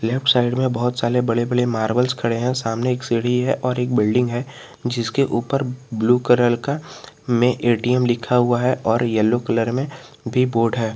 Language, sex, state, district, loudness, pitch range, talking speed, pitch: Hindi, male, Jharkhand, Garhwa, -20 LUFS, 120-125 Hz, 190 wpm, 125 Hz